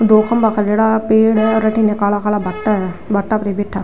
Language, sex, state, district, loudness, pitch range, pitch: Rajasthani, female, Rajasthan, Nagaur, -15 LUFS, 205-220 Hz, 215 Hz